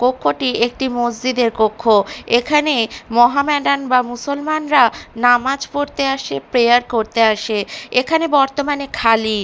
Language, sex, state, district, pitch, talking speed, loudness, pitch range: Bengali, female, Bihar, Katihar, 245 Hz, 110 wpm, -16 LUFS, 230-280 Hz